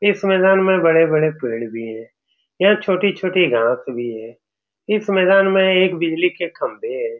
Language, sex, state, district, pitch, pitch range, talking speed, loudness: Hindi, male, Bihar, Saran, 180 Hz, 120-195 Hz, 175 wpm, -17 LUFS